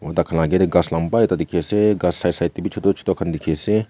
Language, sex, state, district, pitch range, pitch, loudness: Nagamese, male, Nagaland, Kohima, 85-105 Hz, 95 Hz, -19 LUFS